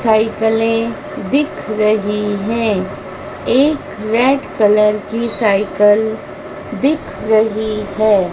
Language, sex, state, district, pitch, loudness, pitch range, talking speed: Hindi, female, Madhya Pradesh, Dhar, 215 Hz, -16 LUFS, 210-230 Hz, 85 wpm